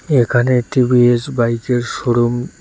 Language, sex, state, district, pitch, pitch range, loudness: Bengali, male, West Bengal, Cooch Behar, 120 Hz, 120-125 Hz, -15 LUFS